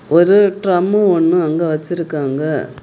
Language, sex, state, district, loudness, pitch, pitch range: Tamil, female, Tamil Nadu, Kanyakumari, -15 LUFS, 170 Hz, 155-190 Hz